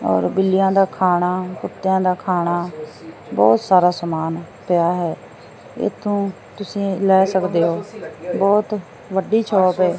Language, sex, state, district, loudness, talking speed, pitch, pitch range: Punjabi, female, Punjab, Fazilka, -19 LUFS, 120 wpm, 185 Hz, 170-195 Hz